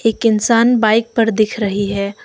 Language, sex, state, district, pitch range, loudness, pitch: Hindi, female, Arunachal Pradesh, Longding, 210-230 Hz, -15 LUFS, 220 Hz